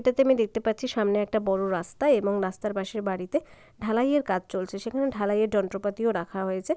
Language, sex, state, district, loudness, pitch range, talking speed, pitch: Bengali, female, West Bengal, Jalpaiguri, -27 LUFS, 195-230 Hz, 175 wpm, 210 Hz